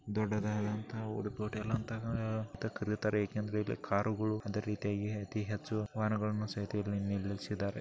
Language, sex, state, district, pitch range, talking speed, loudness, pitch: Kannada, male, Karnataka, Bellary, 105-110 Hz, 140 wpm, -37 LUFS, 105 Hz